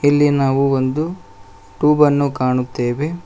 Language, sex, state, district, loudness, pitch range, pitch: Kannada, male, Karnataka, Koppal, -17 LUFS, 125-150 Hz, 135 Hz